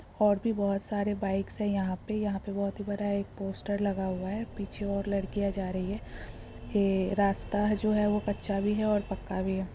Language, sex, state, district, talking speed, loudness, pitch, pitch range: Hindi, female, Bihar, Darbhanga, 225 wpm, -31 LUFS, 200 Hz, 195-205 Hz